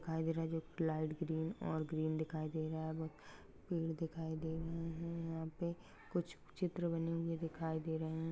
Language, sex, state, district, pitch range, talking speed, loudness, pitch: Hindi, male, Maharashtra, Pune, 160-165 Hz, 195 wpm, -42 LUFS, 160 Hz